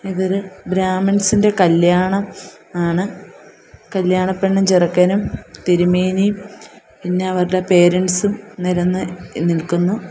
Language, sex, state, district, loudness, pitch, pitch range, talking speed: Malayalam, female, Kerala, Kollam, -17 LUFS, 185 Hz, 180-195 Hz, 85 wpm